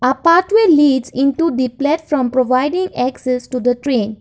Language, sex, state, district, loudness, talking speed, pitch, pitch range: English, female, Assam, Kamrup Metropolitan, -15 LUFS, 170 wpm, 265 Hz, 255-315 Hz